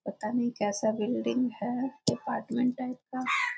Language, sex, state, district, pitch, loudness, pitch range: Maithili, female, Bihar, Muzaffarpur, 245 Hz, -31 LUFS, 215-255 Hz